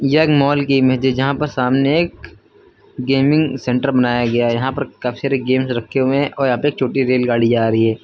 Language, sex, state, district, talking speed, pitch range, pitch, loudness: Hindi, male, Uttar Pradesh, Lucknow, 240 wpm, 125-140 Hz, 130 Hz, -16 LUFS